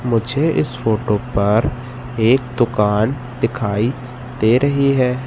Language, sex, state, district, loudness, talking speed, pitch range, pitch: Hindi, male, Madhya Pradesh, Katni, -17 LUFS, 115 wpm, 110-125 Hz, 125 Hz